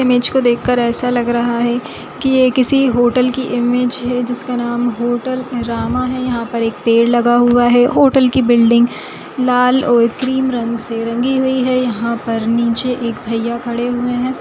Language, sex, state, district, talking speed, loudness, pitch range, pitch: Hindi, female, Bihar, Sitamarhi, 190 wpm, -15 LUFS, 235-255 Hz, 245 Hz